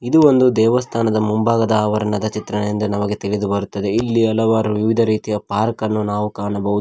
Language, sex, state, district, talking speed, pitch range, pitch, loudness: Kannada, male, Karnataka, Koppal, 150 wpm, 105-115 Hz, 110 Hz, -18 LUFS